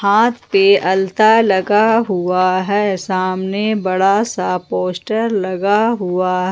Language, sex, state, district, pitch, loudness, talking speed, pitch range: Hindi, female, Jharkhand, Ranchi, 195 Hz, -15 LUFS, 110 wpm, 185-215 Hz